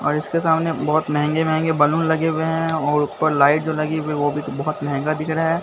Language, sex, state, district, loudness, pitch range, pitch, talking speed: Hindi, male, Bihar, Katihar, -20 LUFS, 150-160 Hz, 155 Hz, 245 wpm